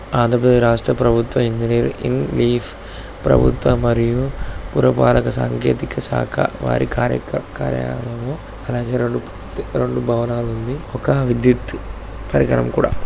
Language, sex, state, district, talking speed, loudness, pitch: Telugu, male, Andhra Pradesh, Guntur, 105 wpm, -18 LUFS, 120 Hz